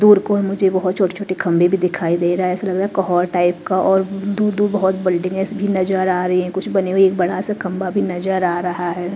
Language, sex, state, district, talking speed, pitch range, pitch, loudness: Hindi, female, Haryana, Rohtak, 255 wpm, 180-195 Hz, 185 Hz, -18 LUFS